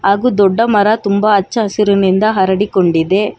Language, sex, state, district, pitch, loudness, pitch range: Kannada, female, Karnataka, Bangalore, 200 Hz, -12 LUFS, 190-215 Hz